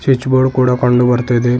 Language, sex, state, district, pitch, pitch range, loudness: Kannada, male, Karnataka, Bidar, 125 Hz, 125-130 Hz, -13 LUFS